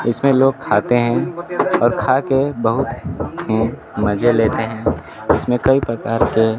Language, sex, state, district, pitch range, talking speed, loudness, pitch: Hindi, male, Bihar, Kaimur, 110-130 Hz, 155 wpm, -17 LUFS, 115 Hz